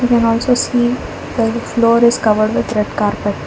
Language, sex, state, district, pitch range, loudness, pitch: English, female, Karnataka, Bangalore, 215-240 Hz, -15 LUFS, 230 Hz